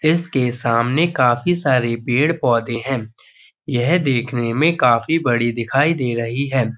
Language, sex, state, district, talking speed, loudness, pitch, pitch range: Hindi, male, Uttar Pradesh, Budaun, 135 wpm, -18 LUFS, 125 Hz, 120-150 Hz